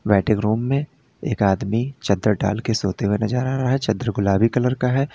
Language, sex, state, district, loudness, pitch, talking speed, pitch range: Hindi, male, Uttar Pradesh, Lalitpur, -21 LUFS, 115 Hz, 220 wpm, 105-130 Hz